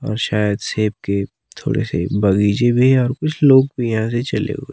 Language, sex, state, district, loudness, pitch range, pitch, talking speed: Hindi, male, Himachal Pradesh, Shimla, -17 LUFS, 105-130 Hz, 115 Hz, 215 wpm